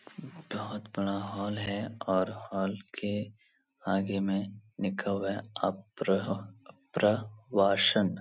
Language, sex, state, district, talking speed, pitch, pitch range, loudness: Hindi, male, Bihar, Supaul, 100 wpm, 100 Hz, 100-105 Hz, -32 LUFS